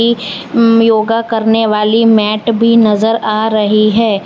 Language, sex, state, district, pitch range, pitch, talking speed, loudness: Hindi, female, Gujarat, Valsad, 215-230 Hz, 220 Hz, 125 wpm, -11 LUFS